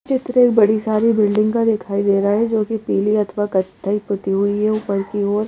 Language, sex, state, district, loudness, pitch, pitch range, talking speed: Hindi, female, Madhya Pradesh, Bhopal, -18 LUFS, 210 Hz, 200-220 Hz, 220 wpm